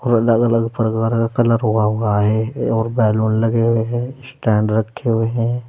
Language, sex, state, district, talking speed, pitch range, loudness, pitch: Hindi, male, Uttar Pradesh, Saharanpur, 180 wpm, 110-115 Hz, -17 LUFS, 115 Hz